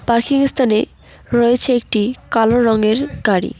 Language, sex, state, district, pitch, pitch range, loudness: Bengali, female, West Bengal, Cooch Behar, 240 Hz, 225-255 Hz, -15 LUFS